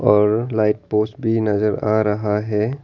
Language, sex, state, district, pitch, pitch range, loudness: Hindi, male, Arunachal Pradesh, Lower Dibang Valley, 105 Hz, 105-110 Hz, -19 LUFS